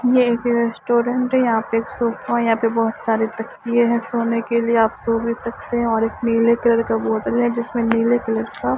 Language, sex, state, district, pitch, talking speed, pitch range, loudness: Hindi, female, Punjab, Fazilka, 235 Hz, 230 wpm, 225-240 Hz, -19 LUFS